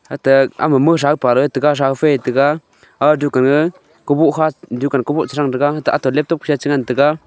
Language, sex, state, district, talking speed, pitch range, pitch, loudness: Wancho, male, Arunachal Pradesh, Longding, 130 wpm, 135-150 Hz, 145 Hz, -15 LUFS